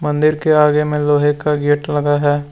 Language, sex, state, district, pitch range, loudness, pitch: Hindi, male, Jharkhand, Deoghar, 145-150 Hz, -15 LUFS, 150 Hz